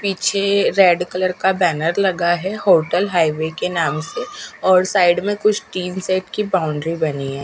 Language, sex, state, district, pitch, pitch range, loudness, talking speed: Hindi, female, Bihar, Katihar, 185 Hz, 165-195 Hz, -18 LUFS, 175 wpm